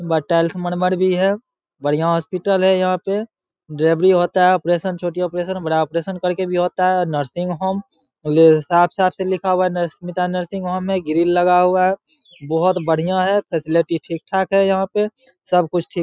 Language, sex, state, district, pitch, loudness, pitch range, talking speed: Hindi, male, Bihar, Saharsa, 180 Hz, -18 LUFS, 170-190 Hz, 180 wpm